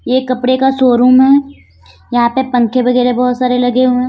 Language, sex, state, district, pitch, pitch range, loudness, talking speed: Hindi, female, Uttar Pradesh, Lalitpur, 250 Hz, 245-255 Hz, -12 LUFS, 190 wpm